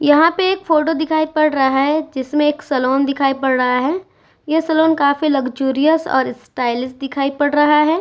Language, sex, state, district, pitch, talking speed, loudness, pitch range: Hindi, female, Uttar Pradesh, Etah, 295 Hz, 185 wpm, -16 LUFS, 270-315 Hz